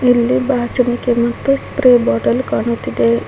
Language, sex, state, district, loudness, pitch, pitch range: Kannada, female, Karnataka, Koppal, -15 LUFS, 240 Hz, 230-255 Hz